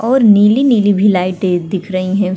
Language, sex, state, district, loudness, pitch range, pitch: Hindi, female, Uttar Pradesh, Etah, -12 LUFS, 185-215 Hz, 195 Hz